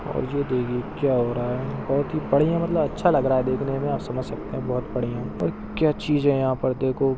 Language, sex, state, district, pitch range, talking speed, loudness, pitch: Hindi, male, Chhattisgarh, Balrampur, 125-145 Hz, 225 wpm, -24 LUFS, 130 Hz